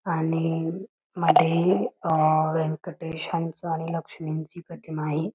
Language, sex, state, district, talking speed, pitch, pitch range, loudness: Marathi, female, Karnataka, Belgaum, 80 wpm, 165 Hz, 160-170 Hz, -25 LUFS